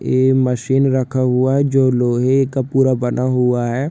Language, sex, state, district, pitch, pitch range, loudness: Hindi, male, Jharkhand, Sahebganj, 130 Hz, 125-135 Hz, -16 LUFS